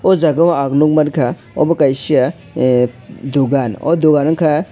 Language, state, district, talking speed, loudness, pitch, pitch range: Kokborok, Tripura, West Tripura, 165 wpm, -14 LUFS, 150 Hz, 135-160 Hz